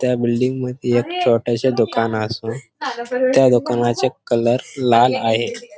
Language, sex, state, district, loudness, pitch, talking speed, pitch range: Marathi, male, Maharashtra, Pune, -18 LUFS, 120 Hz, 125 wpm, 115-130 Hz